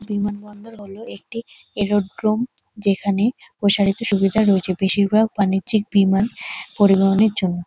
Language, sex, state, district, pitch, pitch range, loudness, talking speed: Bengali, female, West Bengal, North 24 Parganas, 205 Hz, 195-215 Hz, -18 LUFS, 110 wpm